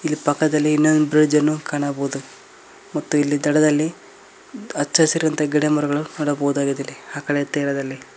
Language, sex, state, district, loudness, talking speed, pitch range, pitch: Kannada, male, Karnataka, Koppal, -20 LUFS, 130 wpm, 140-155 Hz, 150 Hz